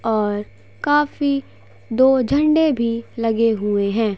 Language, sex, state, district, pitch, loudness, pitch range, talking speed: Hindi, female, Uttar Pradesh, Gorakhpur, 230 Hz, -19 LUFS, 205-275 Hz, 115 wpm